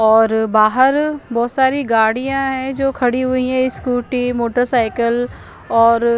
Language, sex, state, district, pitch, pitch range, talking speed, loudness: Hindi, female, Chandigarh, Chandigarh, 245 Hz, 230-260 Hz, 145 wpm, -16 LUFS